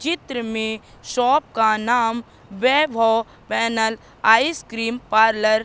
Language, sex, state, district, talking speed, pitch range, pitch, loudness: Hindi, female, Madhya Pradesh, Katni, 105 wpm, 220-245 Hz, 225 Hz, -20 LUFS